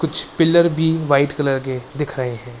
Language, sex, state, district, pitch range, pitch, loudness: Hindi, male, Bihar, Begusarai, 130-160 Hz, 145 Hz, -18 LUFS